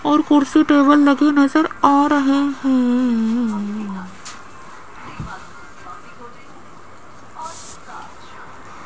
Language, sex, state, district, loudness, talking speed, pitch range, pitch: Hindi, female, Rajasthan, Jaipur, -16 LUFS, 55 wpm, 240-295 Hz, 280 Hz